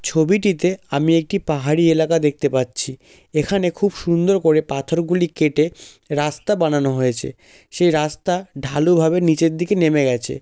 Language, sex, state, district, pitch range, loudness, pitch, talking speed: Bengali, male, West Bengal, Jalpaiguri, 150-175 Hz, -18 LUFS, 160 Hz, 135 wpm